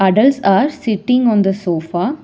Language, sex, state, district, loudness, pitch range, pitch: English, female, Telangana, Hyderabad, -15 LUFS, 190-250 Hz, 215 Hz